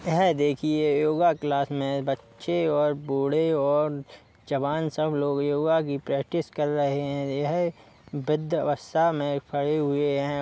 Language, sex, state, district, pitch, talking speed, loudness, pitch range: Hindi, male, Uttar Pradesh, Gorakhpur, 145 Hz, 145 wpm, -26 LUFS, 140-155 Hz